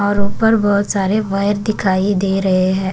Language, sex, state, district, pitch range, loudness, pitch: Hindi, female, Maharashtra, Chandrapur, 190-205 Hz, -16 LUFS, 200 Hz